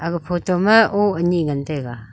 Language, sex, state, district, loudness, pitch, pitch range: Wancho, female, Arunachal Pradesh, Longding, -18 LUFS, 175 Hz, 150-190 Hz